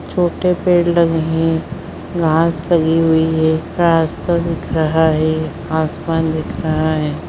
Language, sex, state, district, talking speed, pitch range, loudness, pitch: Hindi, female, Bihar, Begusarai, 130 wpm, 160-170 Hz, -16 LUFS, 160 Hz